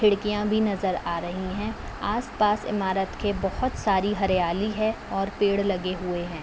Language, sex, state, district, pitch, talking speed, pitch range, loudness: Hindi, female, Uttar Pradesh, Jalaun, 200 Hz, 175 wpm, 185-210 Hz, -26 LUFS